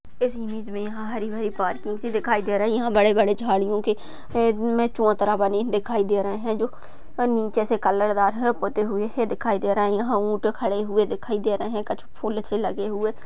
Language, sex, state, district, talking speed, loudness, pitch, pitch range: Hindi, female, Maharashtra, Sindhudurg, 200 wpm, -24 LUFS, 215 Hz, 205-225 Hz